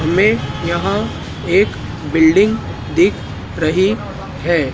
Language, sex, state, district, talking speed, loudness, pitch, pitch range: Hindi, male, Madhya Pradesh, Dhar, 90 wpm, -16 LUFS, 190 Hz, 165-220 Hz